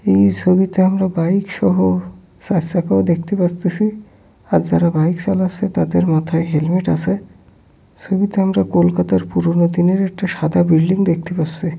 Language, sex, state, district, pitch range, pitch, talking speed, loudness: Bengali, male, West Bengal, Kolkata, 150-190 Hz, 175 Hz, 140 wpm, -16 LUFS